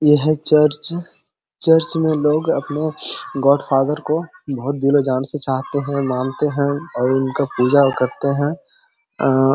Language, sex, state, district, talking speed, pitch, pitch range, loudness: Hindi, male, Jharkhand, Sahebganj, 145 wpm, 145 Hz, 135-155 Hz, -18 LUFS